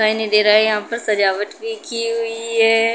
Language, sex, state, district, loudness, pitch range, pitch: Hindi, female, Uttar Pradesh, Budaun, -17 LUFS, 215-230 Hz, 225 Hz